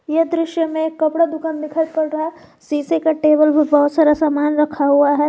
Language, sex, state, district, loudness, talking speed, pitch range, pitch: Hindi, female, Jharkhand, Garhwa, -17 LUFS, 225 wpm, 300-320 Hz, 310 Hz